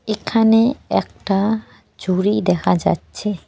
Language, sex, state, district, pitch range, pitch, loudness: Bengali, female, West Bengal, Cooch Behar, 175-220 Hz, 205 Hz, -18 LUFS